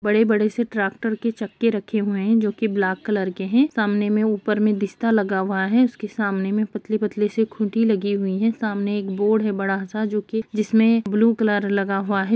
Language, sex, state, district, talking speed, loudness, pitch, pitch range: Hindi, female, Bihar, Gaya, 215 wpm, -21 LUFS, 210 Hz, 200-220 Hz